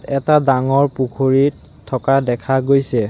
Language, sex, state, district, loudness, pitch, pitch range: Assamese, male, Assam, Sonitpur, -16 LUFS, 135 Hz, 130-140 Hz